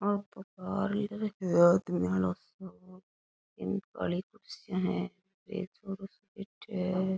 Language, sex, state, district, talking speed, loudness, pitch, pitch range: Rajasthani, female, Rajasthan, Nagaur, 135 wpm, -32 LUFS, 190 Hz, 185-200 Hz